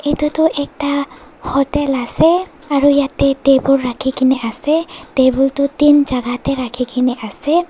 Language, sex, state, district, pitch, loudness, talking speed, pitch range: Nagamese, female, Nagaland, Dimapur, 275 Hz, -15 LUFS, 150 wpm, 260-295 Hz